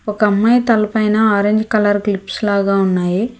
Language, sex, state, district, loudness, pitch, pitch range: Telugu, female, Telangana, Hyderabad, -15 LUFS, 210 Hz, 200-220 Hz